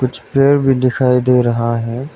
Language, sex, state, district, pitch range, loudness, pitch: Hindi, male, Arunachal Pradesh, Lower Dibang Valley, 120-135 Hz, -14 LUFS, 125 Hz